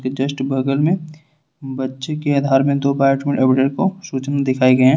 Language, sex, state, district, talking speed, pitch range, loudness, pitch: Hindi, male, Jharkhand, Ranchi, 170 wpm, 130-145 Hz, -18 LUFS, 135 Hz